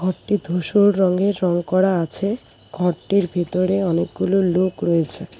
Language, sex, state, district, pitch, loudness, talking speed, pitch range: Bengali, female, West Bengal, Cooch Behar, 185 Hz, -19 LUFS, 120 wpm, 175-195 Hz